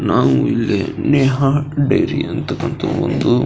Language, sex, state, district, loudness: Kannada, male, Karnataka, Belgaum, -17 LUFS